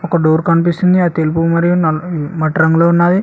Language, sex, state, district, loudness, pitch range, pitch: Telugu, male, Telangana, Hyderabad, -13 LUFS, 160-175 Hz, 170 Hz